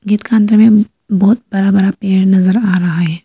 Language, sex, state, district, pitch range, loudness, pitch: Hindi, female, Arunachal Pradesh, Lower Dibang Valley, 190-215 Hz, -11 LUFS, 200 Hz